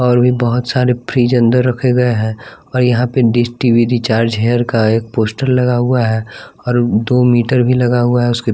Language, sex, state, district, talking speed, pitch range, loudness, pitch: Hindi, male, Bihar, West Champaran, 205 wpm, 115-125 Hz, -13 LUFS, 120 Hz